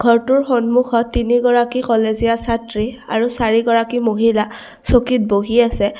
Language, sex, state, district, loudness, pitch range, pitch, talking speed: Assamese, female, Assam, Kamrup Metropolitan, -16 LUFS, 225-245 Hz, 235 Hz, 130 wpm